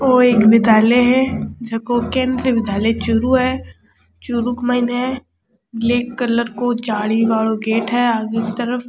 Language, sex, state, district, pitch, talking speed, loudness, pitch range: Rajasthani, female, Rajasthan, Churu, 235 Hz, 150 wpm, -17 LUFS, 220-245 Hz